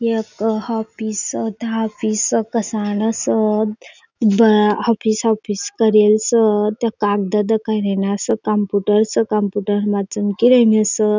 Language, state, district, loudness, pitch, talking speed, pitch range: Bhili, Maharashtra, Dhule, -17 LUFS, 215 Hz, 125 wpm, 210-225 Hz